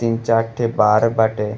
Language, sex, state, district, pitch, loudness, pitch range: Bhojpuri, male, Uttar Pradesh, Gorakhpur, 115 Hz, -17 LUFS, 105-115 Hz